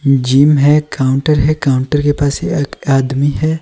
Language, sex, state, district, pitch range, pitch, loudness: Hindi, male, Himachal Pradesh, Shimla, 135-150 Hz, 145 Hz, -13 LUFS